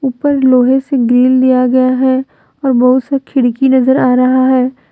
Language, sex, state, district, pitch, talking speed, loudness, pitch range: Hindi, female, Jharkhand, Deoghar, 260 Hz, 185 wpm, -11 LUFS, 255-265 Hz